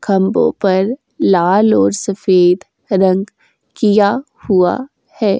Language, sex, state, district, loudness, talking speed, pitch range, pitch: Hindi, female, Uttar Pradesh, Jyotiba Phule Nagar, -14 LUFS, 100 wpm, 185-210 Hz, 195 Hz